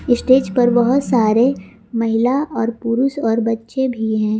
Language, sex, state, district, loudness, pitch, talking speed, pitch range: Hindi, female, Jharkhand, Garhwa, -17 LUFS, 235 Hz, 150 wpm, 225-255 Hz